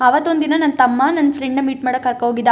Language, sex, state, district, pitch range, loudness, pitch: Kannada, female, Karnataka, Chamarajanagar, 250-295 Hz, -16 LUFS, 270 Hz